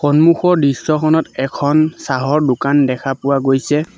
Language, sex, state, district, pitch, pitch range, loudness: Assamese, male, Assam, Sonitpur, 145 Hz, 135-155 Hz, -15 LUFS